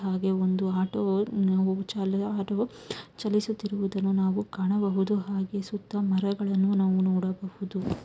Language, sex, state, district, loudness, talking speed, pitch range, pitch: Kannada, female, Karnataka, Mysore, -28 LUFS, 80 wpm, 190-205 Hz, 195 Hz